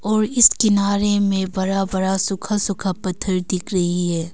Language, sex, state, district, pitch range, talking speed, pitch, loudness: Hindi, female, Arunachal Pradesh, Longding, 185-205 Hz, 165 wpm, 195 Hz, -19 LUFS